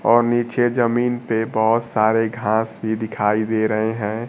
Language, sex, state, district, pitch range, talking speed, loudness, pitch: Hindi, male, Bihar, Kaimur, 110-120 Hz, 170 wpm, -20 LUFS, 110 Hz